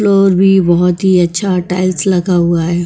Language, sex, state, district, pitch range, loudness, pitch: Hindi, female, Goa, North and South Goa, 175-190 Hz, -12 LUFS, 185 Hz